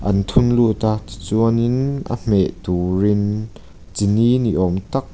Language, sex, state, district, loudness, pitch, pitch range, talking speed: Mizo, male, Mizoram, Aizawl, -18 LUFS, 105 Hz, 95-115 Hz, 140 wpm